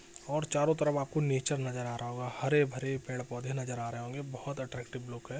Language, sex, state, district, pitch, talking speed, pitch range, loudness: Hindi, male, Bihar, Jahanabad, 130 Hz, 235 wpm, 125-145 Hz, -34 LUFS